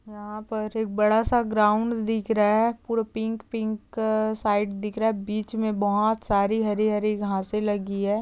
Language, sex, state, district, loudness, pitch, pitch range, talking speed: Hindi, female, Maharashtra, Chandrapur, -25 LUFS, 215 Hz, 210-220 Hz, 170 wpm